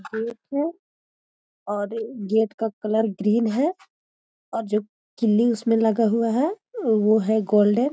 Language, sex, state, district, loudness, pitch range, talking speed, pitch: Magahi, female, Bihar, Gaya, -23 LUFS, 215-235 Hz, 145 wpm, 225 Hz